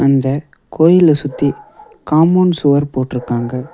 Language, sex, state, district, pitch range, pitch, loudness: Tamil, male, Tamil Nadu, Nilgiris, 135-165 Hz, 145 Hz, -14 LUFS